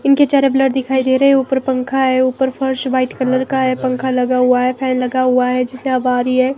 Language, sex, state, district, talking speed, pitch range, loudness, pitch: Hindi, female, Himachal Pradesh, Shimla, 265 wpm, 255-265 Hz, -15 LUFS, 260 Hz